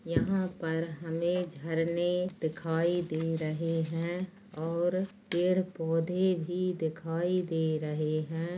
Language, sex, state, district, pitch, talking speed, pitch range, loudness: Hindi, female, Goa, North and South Goa, 165 Hz, 110 wpm, 160-180 Hz, -32 LUFS